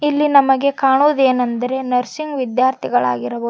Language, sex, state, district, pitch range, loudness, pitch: Kannada, female, Karnataka, Koppal, 245-280 Hz, -16 LUFS, 265 Hz